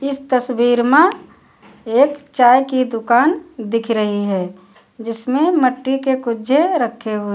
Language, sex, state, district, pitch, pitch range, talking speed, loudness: Hindi, female, Uttar Pradesh, Lucknow, 250 Hz, 225-275 Hz, 130 wpm, -16 LUFS